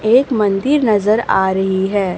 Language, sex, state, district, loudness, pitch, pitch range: Hindi, female, Chhattisgarh, Raipur, -15 LUFS, 205 Hz, 190-225 Hz